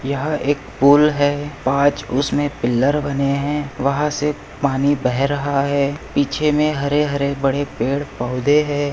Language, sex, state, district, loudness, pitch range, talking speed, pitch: Hindi, male, Maharashtra, Pune, -19 LUFS, 140-145 Hz, 155 wpm, 140 Hz